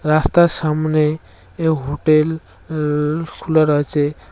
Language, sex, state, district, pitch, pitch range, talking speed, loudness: Bengali, male, West Bengal, Cooch Behar, 155 Hz, 150-160 Hz, 95 wpm, -17 LUFS